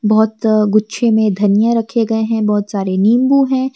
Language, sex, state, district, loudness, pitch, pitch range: Hindi, female, Jharkhand, Garhwa, -14 LUFS, 220 Hz, 210-230 Hz